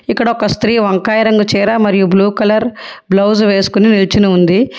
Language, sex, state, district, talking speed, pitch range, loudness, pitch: Telugu, female, Telangana, Hyderabad, 165 wpm, 195-220 Hz, -11 LUFS, 210 Hz